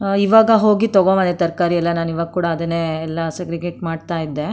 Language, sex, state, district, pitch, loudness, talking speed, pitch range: Kannada, female, Karnataka, Mysore, 170 Hz, -17 LUFS, 185 wpm, 165-190 Hz